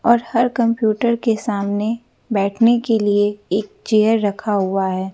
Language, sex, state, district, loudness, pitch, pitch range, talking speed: Hindi, female, Bihar, West Champaran, -18 LUFS, 215 Hz, 205-230 Hz, 150 wpm